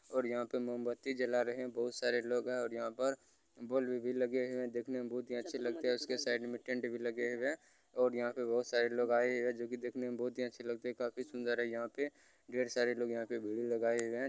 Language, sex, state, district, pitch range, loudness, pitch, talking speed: Maithili, male, Bihar, Begusarai, 120-125 Hz, -38 LUFS, 120 Hz, 275 wpm